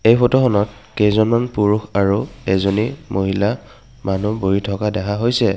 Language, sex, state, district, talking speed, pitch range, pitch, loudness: Assamese, male, Assam, Kamrup Metropolitan, 130 wpm, 100-115 Hz, 105 Hz, -18 LUFS